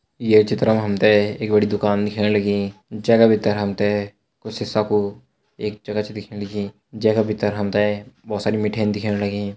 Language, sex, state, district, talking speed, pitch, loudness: Hindi, male, Uttarakhand, Tehri Garhwal, 200 wpm, 105 Hz, -20 LUFS